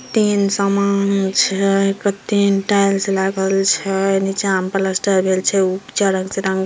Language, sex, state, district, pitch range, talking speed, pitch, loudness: Maithili, female, Bihar, Samastipur, 190-200 Hz, 135 wpm, 195 Hz, -17 LUFS